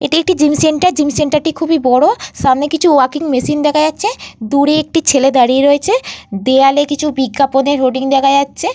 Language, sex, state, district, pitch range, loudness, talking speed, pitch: Bengali, female, Jharkhand, Jamtara, 270-310 Hz, -12 LUFS, 190 wpm, 290 Hz